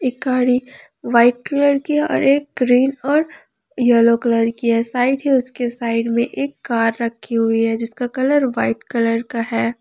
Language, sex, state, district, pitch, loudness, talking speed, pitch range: Hindi, female, Jharkhand, Palamu, 245 Hz, -18 LUFS, 170 wpm, 230-270 Hz